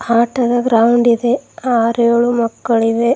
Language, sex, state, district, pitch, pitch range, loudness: Kannada, female, Karnataka, Bidar, 235 Hz, 230-245 Hz, -14 LUFS